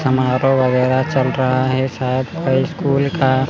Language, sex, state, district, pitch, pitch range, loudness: Hindi, male, Chandigarh, Chandigarh, 130 Hz, 130-135 Hz, -17 LUFS